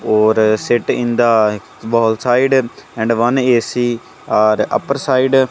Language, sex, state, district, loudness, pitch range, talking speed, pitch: English, male, Punjab, Kapurthala, -15 LUFS, 110-125 Hz, 140 wpm, 120 Hz